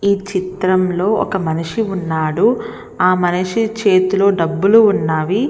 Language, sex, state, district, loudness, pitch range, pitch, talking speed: Telugu, female, Andhra Pradesh, Visakhapatnam, -16 LUFS, 180-215 Hz, 190 Hz, 120 wpm